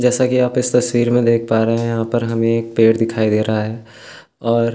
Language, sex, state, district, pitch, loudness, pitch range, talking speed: Hindi, male, Uttarakhand, Tehri Garhwal, 115 Hz, -16 LUFS, 115-120 Hz, 265 wpm